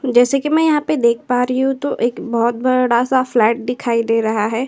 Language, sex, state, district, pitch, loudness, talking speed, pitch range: Hindi, female, Uttar Pradesh, Jyotiba Phule Nagar, 245 Hz, -16 LUFS, 245 wpm, 235-265 Hz